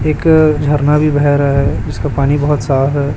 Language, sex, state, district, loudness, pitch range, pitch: Hindi, male, Chhattisgarh, Raipur, -13 LUFS, 140-150 Hz, 145 Hz